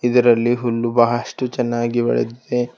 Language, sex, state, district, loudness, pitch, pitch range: Kannada, male, Karnataka, Bidar, -18 LUFS, 120 Hz, 120-125 Hz